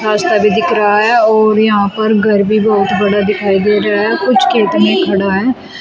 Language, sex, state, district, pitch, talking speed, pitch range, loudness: Hindi, female, Uttar Pradesh, Shamli, 210 Hz, 215 wpm, 205-220 Hz, -11 LUFS